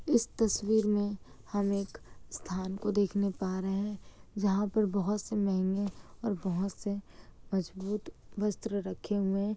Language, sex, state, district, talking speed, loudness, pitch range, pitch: Hindi, female, Bihar, Kishanganj, 155 wpm, -32 LUFS, 195-210 Hz, 200 Hz